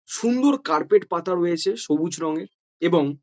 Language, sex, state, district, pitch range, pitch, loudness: Bengali, male, West Bengal, Jhargram, 160-230 Hz, 175 Hz, -22 LUFS